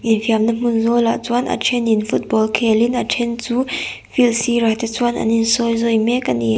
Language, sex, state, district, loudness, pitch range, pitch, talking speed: Mizo, female, Mizoram, Aizawl, -17 LUFS, 225-240 Hz, 230 Hz, 180 wpm